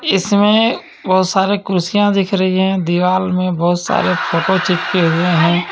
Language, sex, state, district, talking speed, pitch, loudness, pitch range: Hindi, male, Jharkhand, Ranchi, 170 wpm, 185 Hz, -15 LUFS, 175-195 Hz